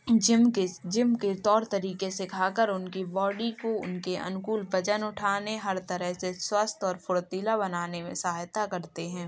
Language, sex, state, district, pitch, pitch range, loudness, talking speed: Hindi, male, Uttar Pradesh, Jalaun, 190 Hz, 180-215 Hz, -29 LUFS, 170 wpm